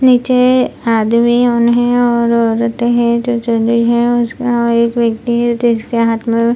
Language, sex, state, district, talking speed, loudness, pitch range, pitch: Hindi, female, Bihar, Purnia, 155 wpm, -13 LUFS, 230-240 Hz, 235 Hz